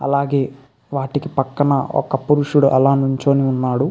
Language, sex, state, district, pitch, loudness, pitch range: Telugu, male, Andhra Pradesh, Krishna, 140 Hz, -18 LUFS, 135-140 Hz